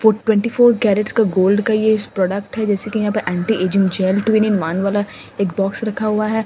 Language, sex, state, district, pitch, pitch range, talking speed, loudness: Hindi, female, Delhi, New Delhi, 210 Hz, 195-220 Hz, 230 wpm, -17 LUFS